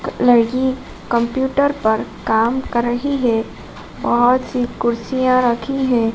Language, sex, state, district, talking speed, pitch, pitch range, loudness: Hindi, male, Madhya Pradesh, Dhar, 115 wpm, 245 Hz, 235-260 Hz, -17 LUFS